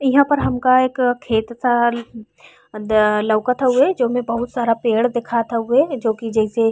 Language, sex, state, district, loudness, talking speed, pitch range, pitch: Bhojpuri, female, Uttar Pradesh, Ghazipur, -18 LUFS, 160 wpm, 225-250 Hz, 235 Hz